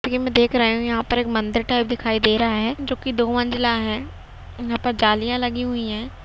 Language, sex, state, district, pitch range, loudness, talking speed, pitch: Hindi, female, Uttarakhand, Uttarkashi, 225-245 Hz, -21 LUFS, 200 wpm, 235 Hz